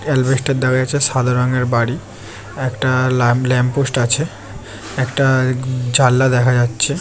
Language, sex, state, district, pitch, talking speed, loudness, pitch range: Bengali, male, West Bengal, Jhargram, 125 Hz, 120 wpm, -16 LUFS, 120-130 Hz